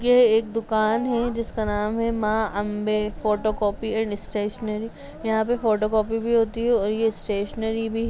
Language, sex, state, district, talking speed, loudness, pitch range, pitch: Hindi, female, Chhattisgarh, Kabirdham, 180 wpm, -24 LUFS, 215-225 Hz, 220 Hz